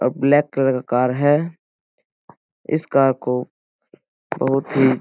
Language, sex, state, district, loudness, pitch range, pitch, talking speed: Hindi, male, Bihar, Jahanabad, -19 LUFS, 125-145 Hz, 135 Hz, 145 wpm